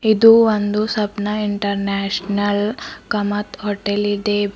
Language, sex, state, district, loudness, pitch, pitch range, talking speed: Kannada, female, Karnataka, Bidar, -18 LUFS, 205 Hz, 205-210 Hz, 90 wpm